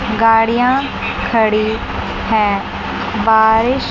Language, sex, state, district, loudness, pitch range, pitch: Hindi, female, Chandigarh, Chandigarh, -15 LUFS, 220-230 Hz, 225 Hz